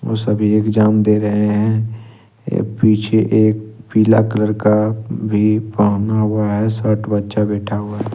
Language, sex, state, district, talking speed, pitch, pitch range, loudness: Hindi, male, Jharkhand, Ranchi, 145 wpm, 110 Hz, 105-110 Hz, -16 LUFS